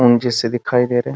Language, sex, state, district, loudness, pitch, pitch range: Hindi, male, Bihar, Muzaffarpur, -17 LUFS, 120 Hz, 120-125 Hz